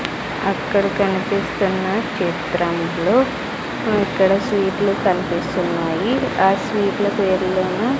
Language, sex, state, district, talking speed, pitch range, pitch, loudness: Telugu, female, Andhra Pradesh, Sri Satya Sai, 75 wpm, 185-205 Hz, 195 Hz, -19 LUFS